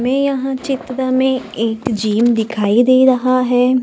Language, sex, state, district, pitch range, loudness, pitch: Hindi, female, Maharashtra, Gondia, 230-260 Hz, -15 LUFS, 255 Hz